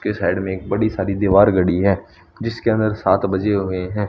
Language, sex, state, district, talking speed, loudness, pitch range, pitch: Hindi, male, Haryana, Rohtak, 220 wpm, -18 LUFS, 95-105 Hz, 100 Hz